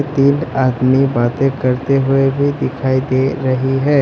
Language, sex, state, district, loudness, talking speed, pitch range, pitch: Hindi, male, Assam, Sonitpur, -15 LUFS, 150 wpm, 130-140 Hz, 135 Hz